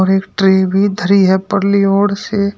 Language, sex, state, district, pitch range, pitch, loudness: Hindi, male, Uttar Pradesh, Shamli, 190-200 Hz, 195 Hz, -13 LUFS